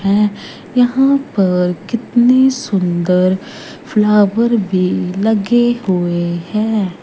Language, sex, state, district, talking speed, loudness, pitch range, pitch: Hindi, female, Punjab, Pathankot, 85 wpm, -14 LUFS, 185-240 Hz, 210 Hz